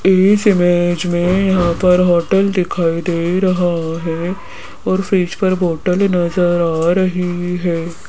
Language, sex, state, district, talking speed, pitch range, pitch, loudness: Hindi, female, Rajasthan, Jaipur, 125 wpm, 170-185 Hz, 180 Hz, -15 LUFS